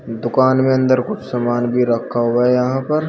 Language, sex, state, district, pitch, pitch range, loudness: Hindi, male, Uttar Pradesh, Shamli, 125 Hz, 120-130 Hz, -16 LUFS